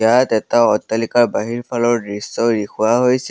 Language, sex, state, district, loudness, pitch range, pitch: Assamese, male, Assam, Kamrup Metropolitan, -17 LUFS, 110-120 Hz, 115 Hz